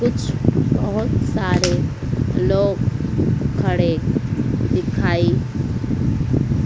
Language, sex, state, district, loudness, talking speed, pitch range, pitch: Hindi, female, Madhya Pradesh, Dhar, -19 LUFS, 55 wpm, 120-135 Hz, 125 Hz